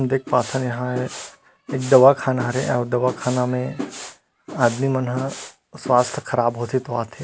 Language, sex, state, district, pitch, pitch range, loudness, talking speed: Chhattisgarhi, male, Chhattisgarh, Rajnandgaon, 125 Hz, 125-130 Hz, -21 LUFS, 155 wpm